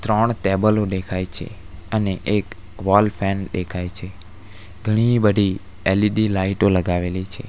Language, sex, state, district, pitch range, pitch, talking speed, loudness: Gujarati, male, Gujarat, Valsad, 95-105 Hz, 95 Hz, 120 wpm, -20 LUFS